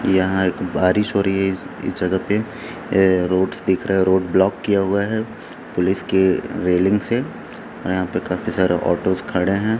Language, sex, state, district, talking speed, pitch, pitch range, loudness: Hindi, male, Chhattisgarh, Raipur, 190 wpm, 95 Hz, 95-100 Hz, -19 LUFS